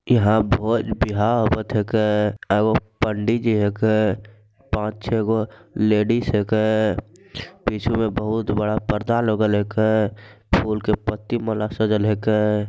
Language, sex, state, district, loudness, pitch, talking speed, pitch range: Angika, male, Bihar, Begusarai, -21 LUFS, 110 Hz, 150 wpm, 105-110 Hz